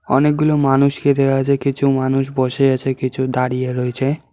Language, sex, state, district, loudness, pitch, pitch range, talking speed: Bengali, male, West Bengal, Alipurduar, -17 LUFS, 135 Hz, 130-140 Hz, 150 wpm